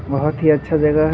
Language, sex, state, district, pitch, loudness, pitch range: Hindi, male, Bihar, Muzaffarpur, 155 Hz, -17 LUFS, 150-155 Hz